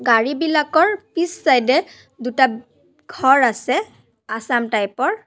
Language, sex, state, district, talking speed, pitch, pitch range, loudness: Assamese, female, Assam, Sonitpur, 115 wpm, 265 Hz, 240-335 Hz, -18 LUFS